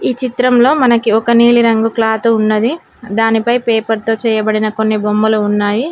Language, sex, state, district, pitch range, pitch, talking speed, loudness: Telugu, female, Telangana, Mahabubabad, 215-235 Hz, 225 Hz, 140 wpm, -12 LUFS